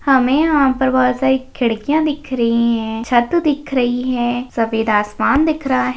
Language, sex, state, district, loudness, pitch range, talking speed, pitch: Hindi, female, Maharashtra, Pune, -16 LUFS, 235-275 Hz, 180 wpm, 255 Hz